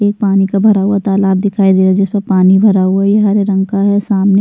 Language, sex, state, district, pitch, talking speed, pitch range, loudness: Hindi, female, Uttarakhand, Tehri Garhwal, 195 Hz, 300 wpm, 195-205 Hz, -11 LUFS